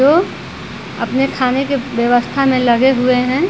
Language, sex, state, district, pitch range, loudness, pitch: Hindi, female, Bihar, Vaishali, 245-275 Hz, -15 LUFS, 260 Hz